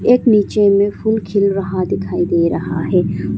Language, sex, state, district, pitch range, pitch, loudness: Hindi, female, Arunachal Pradesh, Longding, 185-215 Hz, 200 Hz, -16 LUFS